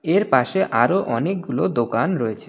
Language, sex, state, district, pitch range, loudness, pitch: Bengali, male, West Bengal, Alipurduar, 115-185 Hz, -20 LUFS, 130 Hz